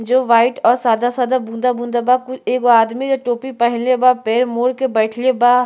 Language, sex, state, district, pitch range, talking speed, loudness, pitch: Bhojpuri, female, Uttar Pradesh, Gorakhpur, 235-255 Hz, 190 wpm, -16 LUFS, 245 Hz